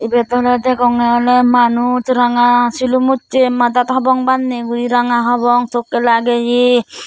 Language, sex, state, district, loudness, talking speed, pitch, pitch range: Chakma, female, Tripura, Dhalai, -13 LUFS, 135 wpm, 245 Hz, 240-250 Hz